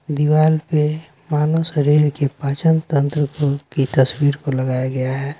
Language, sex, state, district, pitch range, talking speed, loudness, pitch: Hindi, male, Bihar, West Champaran, 140-155 Hz, 155 wpm, -18 LUFS, 145 Hz